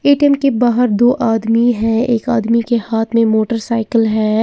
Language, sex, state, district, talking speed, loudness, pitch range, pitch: Hindi, female, Uttar Pradesh, Lalitpur, 175 wpm, -14 LUFS, 225-245 Hz, 230 Hz